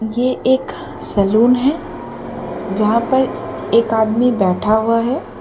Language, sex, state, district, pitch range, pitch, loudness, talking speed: Hindi, female, Uttar Pradesh, Jalaun, 215-255 Hz, 230 Hz, -16 LUFS, 120 wpm